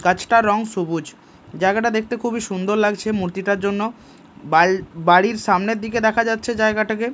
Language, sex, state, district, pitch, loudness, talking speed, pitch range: Bengali, male, Odisha, Malkangiri, 215 Hz, -19 LUFS, 145 wpm, 190-225 Hz